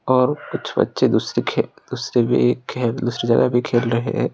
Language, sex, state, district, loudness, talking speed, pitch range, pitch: Hindi, male, Odisha, Khordha, -20 LUFS, 195 wpm, 115-125 Hz, 120 Hz